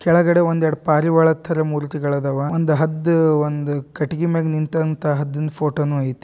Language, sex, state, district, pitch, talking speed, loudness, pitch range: Kannada, male, Karnataka, Dharwad, 155 Hz, 145 wpm, -19 LUFS, 145-165 Hz